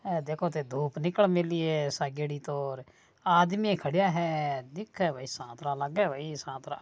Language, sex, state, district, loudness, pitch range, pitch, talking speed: Marwari, male, Rajasthan, Nagaur, -30 LUFS, 145-175 Hz, 155 Hz, 140 wpm